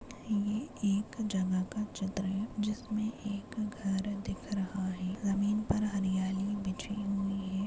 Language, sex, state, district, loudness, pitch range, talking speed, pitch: Hindi, female, Maharashtra, Chandrapur, -34 LUFS, 195-210 Hz, 140 wpm, 200 Hz